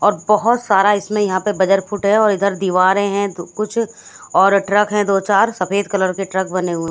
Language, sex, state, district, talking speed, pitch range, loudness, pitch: Hindi, female, Haryana, Charkhi Dadri, 225 wpm, 190-210 Hz, -16 LUFS, 200 Hz